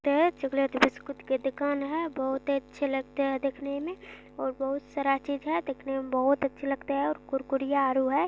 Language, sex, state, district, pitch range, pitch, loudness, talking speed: Hindi, female, Bihar, Jamui, 270-285 Hz, 275 Hz, -29 LUFS, 195 wpm